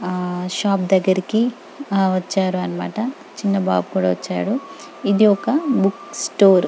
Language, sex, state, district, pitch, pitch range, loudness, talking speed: Telugu, female, Telangana, Karimnagar, 195 Hz, 180-225 Hz, -20 LUFS, 125 wpm